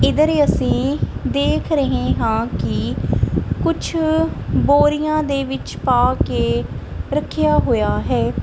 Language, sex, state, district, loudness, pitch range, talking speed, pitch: Punjabi, female, Punjab, Kapurthala, -18 LUFS, 290-315 Hz, 115 wpm, 305 Hz